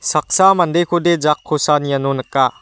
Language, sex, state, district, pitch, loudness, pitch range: Garo, male, Meghalaya, West Garo Hills, 150 Hz, -15 LUFS, 135-175 Hz